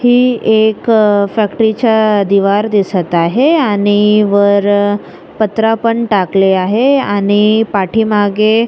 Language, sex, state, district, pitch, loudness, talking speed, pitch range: Marathi, female, Maharashtra, Sindhudurg, 210 Hz, -11 LUFS, 105 wpm, 200-225 Hz